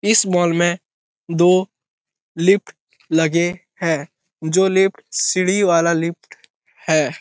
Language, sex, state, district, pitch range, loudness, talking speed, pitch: Hindi, male, Bihar, Jahanabad, 165-190 Hz, -18 LUFS, 115 wpm, 175 Hz